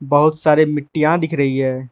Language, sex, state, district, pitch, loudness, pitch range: Hindi, male, Arunachal Pradesh, Lower Dibang Valley, 150 Hz, -16 LUFS, 140-155 Hz